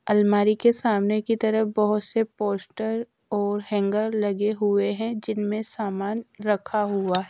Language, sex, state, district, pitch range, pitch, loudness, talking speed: Hindi, female, Madhya Pradesh, Dhar, 205-220 Hz, 210 Hz, -24 LUFS, 140 wpm